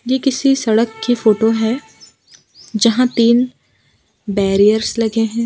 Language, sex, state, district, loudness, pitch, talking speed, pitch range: Hindi, female, Gujarat, Valsad, -15 LUFS, 230 Hz, 120 wpm, 220-245 Hz